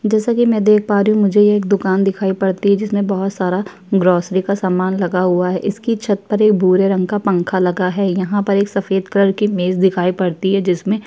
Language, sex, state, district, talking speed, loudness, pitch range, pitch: Hindi, female, Uttar Pradesh, Jyotiba Phule Nagar, 240 wpm, -16 LUFS, 185-205 Hz, 195 Hz